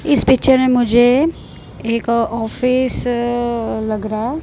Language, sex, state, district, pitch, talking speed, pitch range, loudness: Hindi, male, Punjab, Kapurthala, 240 Hz, 135 wpm, 230-255 Hz, -16 LUFS